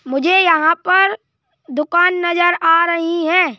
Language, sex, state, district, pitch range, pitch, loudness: Hindi, male, Madhya Pradesh, Bhopal, 325-355 Hz, 340 Hz, -14 LUFS